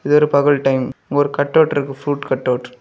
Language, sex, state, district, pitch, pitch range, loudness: Tamil, male, Tamil Nadu, Kanyakumari, 140 Hz, 130-145 Hz, -17 LUFS